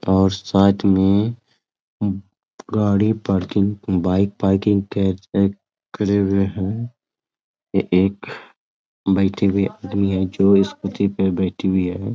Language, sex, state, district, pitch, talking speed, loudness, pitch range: Hindi, male, Jharkhand, Sahebganj, 100 Hz, 120 wpm, -19 LUFS, 95-100 Hz